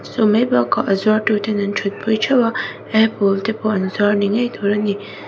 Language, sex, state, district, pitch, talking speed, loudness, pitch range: Mizo, female, Mizoram, Aizawl, 210 Hz, 225 wpm, -18 LUFS, 200-220 Hz